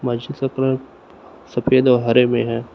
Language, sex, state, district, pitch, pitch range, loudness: Hindi, male, Uttar Pradesh, Lucknow, 125 Hz, 120-130 Hz, -18 LUFS